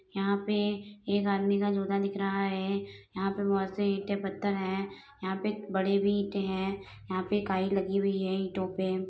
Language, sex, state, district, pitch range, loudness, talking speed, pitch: Hindi, female, Bihar, Madhepura, 190-200 Hz, -31 LUFS, 205 wpm, 195 Hz